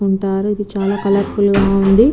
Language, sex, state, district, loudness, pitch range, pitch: Telugu, female, Telangana, Nalgonda, -15 LUFS, 195-205 Hz, 200 Hz